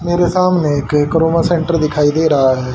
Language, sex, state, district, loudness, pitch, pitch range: Hindi, male, Haryana, Charkhi Dadri, -14 LUFS, 160 Hz, 145-175 Hz